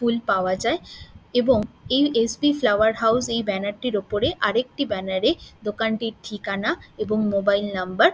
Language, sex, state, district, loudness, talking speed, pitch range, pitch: Bengali, female, West Bengal, Dakshin Dinajpur, -23 LUFS, 155 wpm, 205-245 Hz, 225 Hz